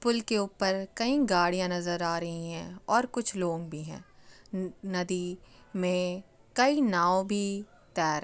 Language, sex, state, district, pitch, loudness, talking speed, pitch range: Hindi, female, Uttar Pradesh, Jyotiba Phule Nagar, 185 Hz, -30 LUFS, 160 wpm, 175-205 Hz